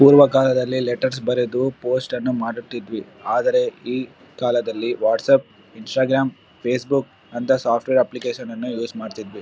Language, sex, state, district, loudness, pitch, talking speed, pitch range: Kannada, male, Karnataka, Bellary, -21 LUFS, 125 Hz, 120 wpm, 120-130 Hz